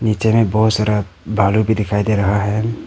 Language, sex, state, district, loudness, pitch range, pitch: Hindi, male, Arunachal Pradesh, Papum Pare, -16 LUFS, 105-110 Hz, 105 Hz